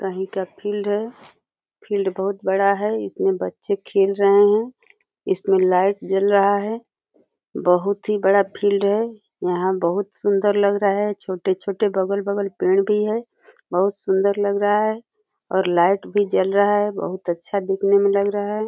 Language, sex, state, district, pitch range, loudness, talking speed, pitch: Hindi, female, Uttar Pradesh, Deoria, 195-205 Hz, -20 LUFS, 165 wpm, 200 Hz